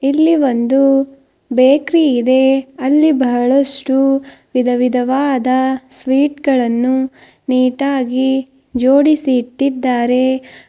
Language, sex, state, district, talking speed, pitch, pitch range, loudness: Kannada, female, Karnataka, Bidar, 75 wpm, 265 Hz, 255-275 Hz, -14 LUFS